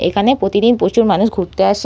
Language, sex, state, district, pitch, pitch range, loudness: Bengali, female, West Bengal, Purulia, 205 Hz, 195-230 Hz, -14 LUFS